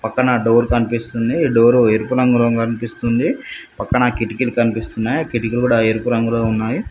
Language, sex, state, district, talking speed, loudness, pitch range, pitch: Telugu, male, Telangana, Mahabubabad, 150 wpm, -17 LUFS, 115-120 Hz, 115 Hz